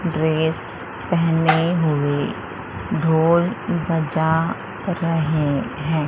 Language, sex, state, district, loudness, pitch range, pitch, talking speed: Hindi, female, Madhya Pradesh, Umaria, -20 LUFS, 155-165 Hz, 160 Hz, 70 wpm